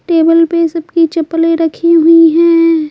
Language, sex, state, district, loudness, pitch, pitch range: Hindi, female, Bihar, Patna, -10 LUFS, 330 Hz, 325-335 Hz